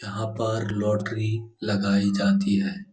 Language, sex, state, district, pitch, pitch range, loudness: Hindi, male, Bihar, Jahanabad, 110 Hz, 105-115 Hz, -25 LUFS